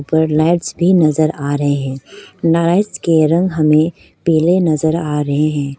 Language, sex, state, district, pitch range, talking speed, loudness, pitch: Hindi, female, Arunachal Pradesh, Lower Dibang Valley, 150-170 Hz, 165 wpm, -15 LUFS, 155 Hz